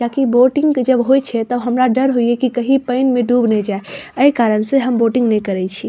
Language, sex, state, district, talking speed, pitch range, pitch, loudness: Maithili, female, Bihar, Saharsa, 265 wpm, 230-260 Hz, 245 Hz, -15 LUFS